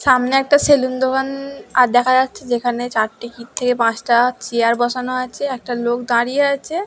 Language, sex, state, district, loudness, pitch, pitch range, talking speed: Bengali, female, West Bengal, Dakshin Dinajpur, -17 LUFS, 250 Hz, 240-265 Hz, 155 wpm